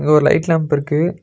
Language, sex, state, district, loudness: Tamil, male, Tamil Nadu, Nilgiris, -16 LUFS